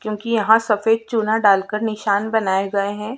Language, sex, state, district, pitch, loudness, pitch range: Hindi, female, Chhattisgarh, Sukma, 215 Hz, -18 LUFS, 200-225 Hz